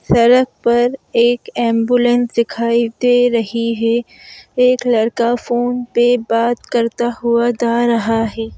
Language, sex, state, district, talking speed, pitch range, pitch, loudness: Hindi, female, Madhya Pradesh, Bhopal, 125 wpm, 230-245 Hz, 235 Hz, -15 LUFS